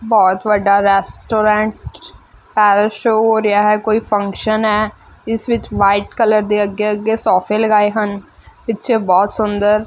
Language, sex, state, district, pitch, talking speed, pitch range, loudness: Punjabi, female, Punjab, Fazilka, 210 Hz, 145 wpm, 205-220 Hz, -15 LUFS